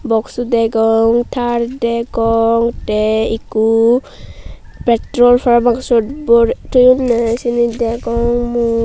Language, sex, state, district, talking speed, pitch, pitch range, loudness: Chakma, female, Tripura, Unakoti, 95 wpm, 235 Hz, 230-240 Hz, -14 LUFS